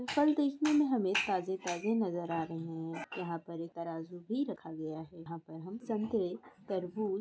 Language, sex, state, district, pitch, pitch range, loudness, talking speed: Hindi, female, Jharkhand, Sahebganj, 180 Hz, 165-220 Hz, -35 LUFS, 185 wpm